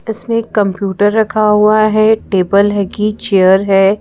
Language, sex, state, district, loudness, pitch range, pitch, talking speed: Hindi, female, Madhya Pradesh, Bhopal, -12 LUFS, 195-215 Hz, 210 Hz, 165 wpm